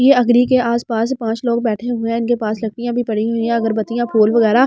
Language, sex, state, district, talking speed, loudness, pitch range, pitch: Hindi, female, Delhi, New Delhi, 245 wpm, -17 LUFS, 225-240 Hz, 235 Hz